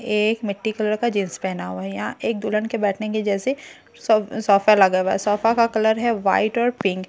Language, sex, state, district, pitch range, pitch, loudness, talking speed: Hindi, female, Bihar, Katihar, 195-225 Hz, 215 Hz, -21 LUFS, 245 wpm